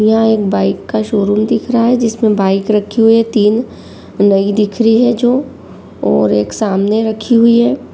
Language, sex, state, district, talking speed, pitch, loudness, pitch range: Hindi, female, Uttar Pradesh, Jyotiba Phule Nagar, 175 wpm, 220 Hz, -12 LUFS, 200-230 Hz